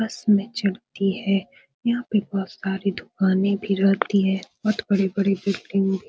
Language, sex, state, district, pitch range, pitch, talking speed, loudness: Hindi, female, Bihar, Supaul, 195-205 Hz, 200 Hz, 175 wpm, -23 LUFS